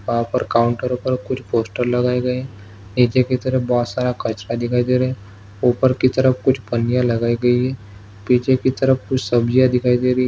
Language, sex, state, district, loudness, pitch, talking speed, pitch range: Hindi, male, Maharashtra, Solapur, -18 LUFS, 125 Hz, 210 wpm, 120-130 Hz